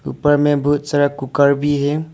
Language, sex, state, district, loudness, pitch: Hindi, male, Arunachal Pradesh, Lower Dibang Valley, -16 LUFS, 145 Hz